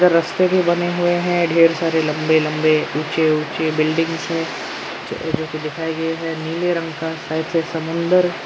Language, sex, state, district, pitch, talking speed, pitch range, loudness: Hindi, male, Arunachal Pradesh, Lower Dibang Valley, 165 Hz, 175 wpm, 160-170 Hz, -19 LUFS